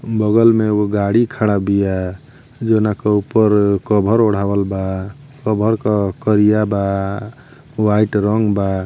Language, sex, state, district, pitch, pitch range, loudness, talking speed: Bhojpuri, male, Uttar Pradesh, Ghazipur, 105 Hz, 100-110 Hz, -16 LUFS, 135 wpm